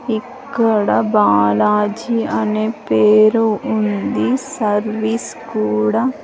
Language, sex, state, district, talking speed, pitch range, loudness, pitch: Telugu, female, Andhra Pradesh, Sri Satya Sai, 65 wpm, 205-230 Hz, -16 LUFS, 215 Hz